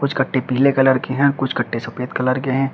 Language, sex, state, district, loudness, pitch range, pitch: Hindi, male, Uttar Pradesh, Shamli, -18 LUFS, 125-135 Hz, 130 Hz